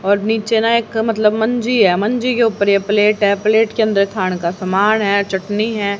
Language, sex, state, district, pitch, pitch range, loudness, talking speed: Hindi, female, Haryana, Charkhi Dadri, 210 Hz, 200-225 Hz, -15 LUFS, 220 wpm